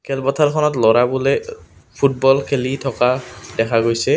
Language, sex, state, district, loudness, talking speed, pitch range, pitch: Assamese, male, Assam, Kamrup Metropolitan, -17 LUFS, 130 wpm, 115-135 Hz, 130 Hz